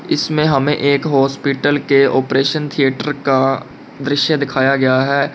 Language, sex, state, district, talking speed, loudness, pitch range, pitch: Hindi, male, Uttar Pradesh, Lalitpur, 135 wpm, -15 LUFS, 135-145 Hz, 140 Hz